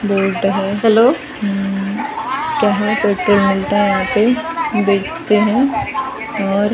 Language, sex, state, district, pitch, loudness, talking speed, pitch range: Hindi, female, Maharashtra, Gondia, 210 Hz, -16 LUFS, 115 wpm, 200-245 Hz